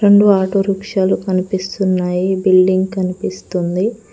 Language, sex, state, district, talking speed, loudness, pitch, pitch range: Telugu, female, Telangana, Mahabubabad, 85 wpm, -16 LUFS, 190 Hz, 185-195 Hz